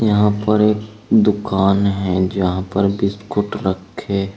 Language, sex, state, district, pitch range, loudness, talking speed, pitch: Hindi, male, Uttar Pradesh, Saharanpur, 95-105 Hz, -18 LUFS, 125 wpm, 100 Hz